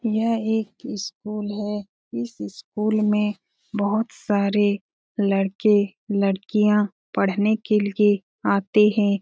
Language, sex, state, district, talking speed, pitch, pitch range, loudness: Hindi, female, Bihar, Lakhisarai, 100 wpm, 210 Hz, 200-210 Hz, -22 LUFS